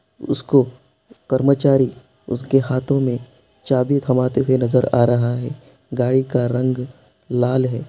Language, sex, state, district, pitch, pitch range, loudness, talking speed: Hindi, male, Bihar, Sitamarhi, 130 Hz, 125-135 Hz, -19 LUFS, 130 wpm